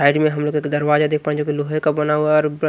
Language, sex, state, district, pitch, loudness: Hindi, male, Odisha, Nuapada, 150 Hz, -18 LUFS